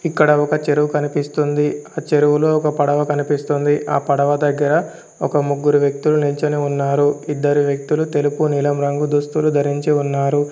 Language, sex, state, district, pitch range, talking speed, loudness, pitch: Telugu, male, Telangana, Komaram Bheem, 145-150 Hz, 140 wpm, -17 LUFS, 145 Hz